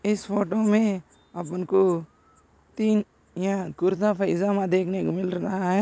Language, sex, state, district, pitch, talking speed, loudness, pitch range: Hindi, male, Maharashtra, Sindhudurg, 195 Hz, 145 wpm, -25 LUFS, 185-205 Hz